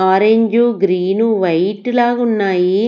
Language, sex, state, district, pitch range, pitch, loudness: Telugu, female, Andhra Pradesh, Sri Satya Sai, 190-230 Hz, 205 Hz, -14 LUFS